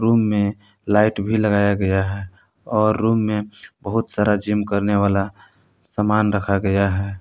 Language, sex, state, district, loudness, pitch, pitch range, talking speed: Hindi, male, Jharkhand, Palamu, -20 LUFS, 105 Hz, 100-105 Hz, 160 wpm